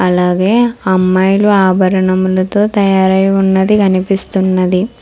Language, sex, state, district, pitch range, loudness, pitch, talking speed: Telugu, female, Telangana, Hyderabad, 185-200 Hz, -11 LUFS, 190 Hz, 70 wpm